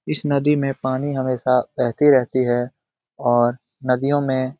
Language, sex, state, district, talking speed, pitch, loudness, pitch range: Hindi, male, Bihar, Lakhisarai, 155 wpm, 130 Hz, -20 LUFS, 125-140 Hz